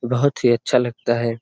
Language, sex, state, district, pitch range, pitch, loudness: Hindi, male, Bihar, Darbhanga, 120-125 Hz, 120 Hz, -19 LUFS